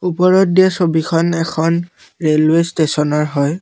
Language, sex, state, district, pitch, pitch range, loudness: Assamese, male, Assam, Kamrup Metropolitan, 165 Hz, 155-175 Hz, -15 LUFS